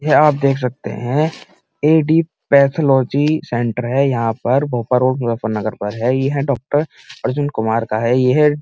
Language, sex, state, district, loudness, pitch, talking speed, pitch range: Hindi, male, Uttar Pradesh, Muzaffarnagar, -17 LUFS, 135 Hz, 180 wpm, 120-145 Hz